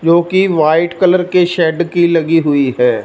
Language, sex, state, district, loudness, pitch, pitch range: Hindi, male, Punjab, Fazilka, -12 LUFS, 170 Hz, 160-175 Hz